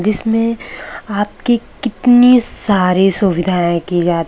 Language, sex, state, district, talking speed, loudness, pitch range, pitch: Hindi, male, Maharashtra, Gondia, 100 wpm, -13 LUFS, 180-240 Hz, 210 Hz